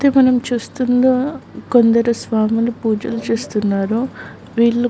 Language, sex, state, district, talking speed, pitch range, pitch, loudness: Telugu, female, Andhra Pradesh, Guntur, 110 wpm, 230-255 Hz, 235 Hz, -17 LUFS